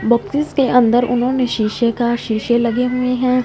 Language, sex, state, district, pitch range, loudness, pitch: Hindi, female, Punjab, Fazilka, 235-250 Hz, -16 LUFS, 245 Hz